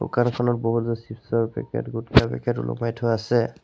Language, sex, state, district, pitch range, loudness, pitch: Assamese, male, Assam, Sonitpur, 115-120 Hz, -24 LUFS, 115 Hz